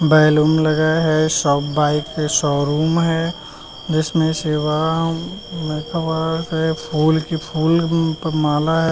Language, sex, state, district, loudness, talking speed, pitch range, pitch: Hindi, male, Uttar Pradesh, Varanasi, -18 LUFS, 115 wpm, 155-160 Hz, 160 Hz